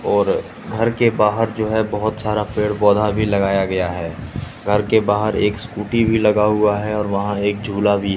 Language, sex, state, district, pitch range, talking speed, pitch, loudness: Hindi, male, Bihar, West Champaran, 105-110 Hz, 205 wpm, 105 Hz, -18 LUFS